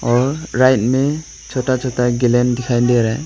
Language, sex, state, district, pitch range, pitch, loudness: Hindi, male, Arunachal Pradesh, Longding, 120-130 Hz, 125 Hz, -16 LUFS